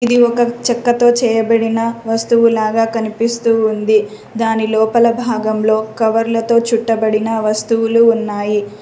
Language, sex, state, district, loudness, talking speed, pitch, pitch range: Telugu, female, Telangana, Mahabubabad, -14 LUFS, 100 wpm, 225 Hz, 220-235 Hz